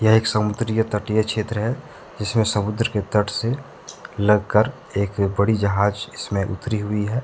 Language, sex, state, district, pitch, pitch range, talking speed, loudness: Hindi, male, Jharkhand, Deoghar, 105 Hz, 105-110 Hz, 155 wpm, -22 LUFS